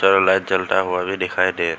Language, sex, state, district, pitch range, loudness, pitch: Hindi, male, Arunachal Pradesh, Lower Dibang Valley, 90-95 Hz, -19 LUFS, 95 Hz